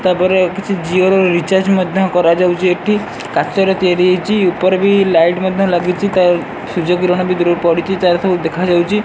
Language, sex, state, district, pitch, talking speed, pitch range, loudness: Odia, male, Odisha, Sambalpur, 180 Hz, 165 wpm, 175-190 Hz, -13 LUFS